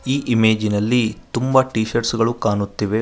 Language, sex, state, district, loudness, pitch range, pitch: Kannada, male, Karnataka, Koppal, -19 LUFS, 110-125 Hz, 115 Hz